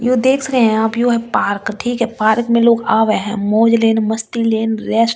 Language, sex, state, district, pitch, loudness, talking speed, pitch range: Hindi, female, Delhi, New Delhi, 225 Hz, -15 LUFS, 245 wpm, 220-235 Hz